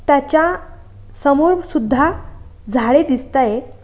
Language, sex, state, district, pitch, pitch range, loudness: Marathi, female, Maharashtra, Aurangabad, 280 Hz, 245-310 Hz, -16 LUFS